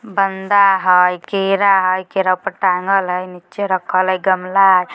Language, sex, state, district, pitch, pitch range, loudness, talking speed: Bajjika, female, Bihar, Vaishali, 185 Hz, 185-195 Hz, -15 LUFS, 155 wpm